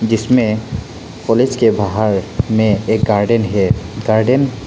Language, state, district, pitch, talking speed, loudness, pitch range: Hindi, Arunachal Pradesh, Papum Pare, 110 Hz, 130 wpm, -15 LUFS, 105-115 Hz